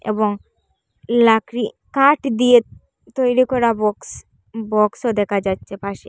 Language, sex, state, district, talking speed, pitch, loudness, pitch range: Bengali, female, Assam, Hailakandi, 110 wpm, 225 Hz, -18 LUFS, 210-245 Hz